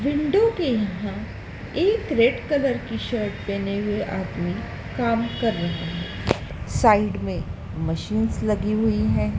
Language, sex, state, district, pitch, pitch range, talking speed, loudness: Hindi, female, Madhya Pradesh, Dhar, 220 Hz, 205-270 Hz, 135 wpm, -24 LUFS